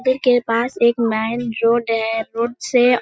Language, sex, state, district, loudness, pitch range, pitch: Hindi, female, Bihar, Kishanganj, -18 LUFS, 230-245 Hz, 235 Hz